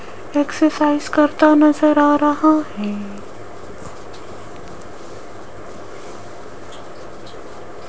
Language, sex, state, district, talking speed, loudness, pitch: Hindi, female, Rajasthan, Jaipur, 45 wpm, -16 LUFS, 290 Hz